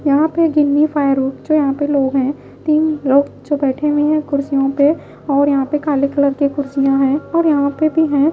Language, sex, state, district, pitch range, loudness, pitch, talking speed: Hindi, female, Punjab, Pathankot, 275-300 Hz, -16 LUFS, 285 Hz, 225 wpm